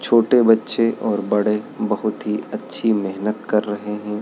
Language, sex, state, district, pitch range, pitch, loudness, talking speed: Hindi, male, Madhya Pradesh, Dhar, 105-115 Hz, 105 Hz, -20 LUFS, 155 wpm